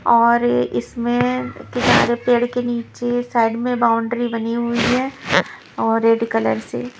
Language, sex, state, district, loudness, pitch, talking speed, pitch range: Hindi, female, Punjab, Pathankot, -19 LUFS, 235 Hz, 135 wpm, 230-240 Hz